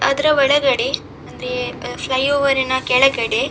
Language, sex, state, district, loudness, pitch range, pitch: Kannada, female, Karnataka, Dakshina Kannada, -17 LUFS, 250-275 Hz, 270 Hz